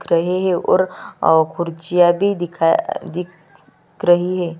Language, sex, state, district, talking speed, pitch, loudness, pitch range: Hindi, female, Chhattisgarh, Kabirdham, 145 wpm, 175 Hz, -17 LUFS, 165-180 Hz